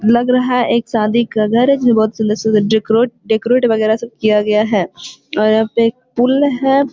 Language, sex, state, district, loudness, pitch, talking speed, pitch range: Hindi, female, Bihar, Jamui, -14 LUFS, 230 Hz, 210 wpm, 215-245 Hz